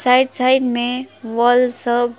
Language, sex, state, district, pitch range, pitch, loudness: Hindi, female, West Bengal, Alipurduar, 240-255 Hz, 245 Hz, -17 LUFS